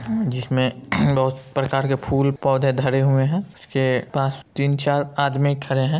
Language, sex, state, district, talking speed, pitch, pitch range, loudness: Hindi, male, Bihar, Saran, 160 wpm, 135 Hz, 130-140 Hz, -21 LUFS